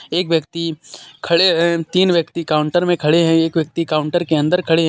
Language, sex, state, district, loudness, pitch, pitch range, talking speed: Hindi, male, Jharkhand, Deoghar, -17 LUFS, 170 Hz, 160-175 Hz, 210 wpm